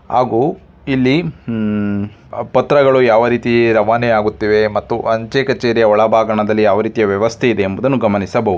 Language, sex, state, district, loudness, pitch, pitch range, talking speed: Kannada, male, Karnataka, Dharwad, -14 LUFS, 115 Hz, 105-120 Hz, 135 wpm